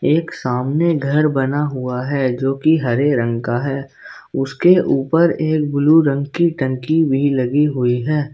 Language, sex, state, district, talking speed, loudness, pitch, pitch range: Hindi, male, Jharkhand, Ranchi, 165 wpm, -17 LUFS, 140 Hz, 130-155 Hz